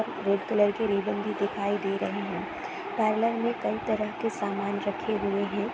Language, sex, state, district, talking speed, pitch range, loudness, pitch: Hindi, female, Uttar Pradesh, Etah, 190 wpm, 200-220 Hz, -29 LUFS, 205 Hz